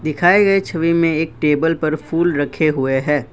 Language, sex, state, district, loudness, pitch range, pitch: Hindi, male, Assam, Kamrup Metropolitan, -16 LUFS, 150-170 Hz, 155 Hz